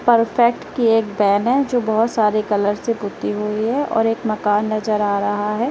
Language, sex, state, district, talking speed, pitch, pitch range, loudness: Hindi, female, Uttar Pradesh, Lalitpur, 210 wpm, 215 Hz, 210-230 Hz, -18 LUFS